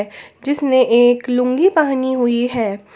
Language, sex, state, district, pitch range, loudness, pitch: Hindi, female, Jharkhand, Ranchi, 240-265 Hz, -15 LUFS, 250 Hz